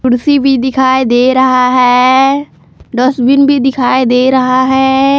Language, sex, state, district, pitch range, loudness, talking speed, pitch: Hindi, female, Jharkhand, Palamu, 255-270 Hz, -9 LUFS, 140 wpm, 260 Hz